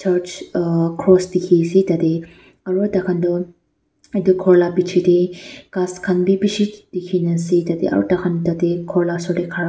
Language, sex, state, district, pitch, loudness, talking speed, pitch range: Nagamese, female, Nagaland, Dimapur, 180 Hz, -18 LUFS, 180 wpm, 175-185 Hz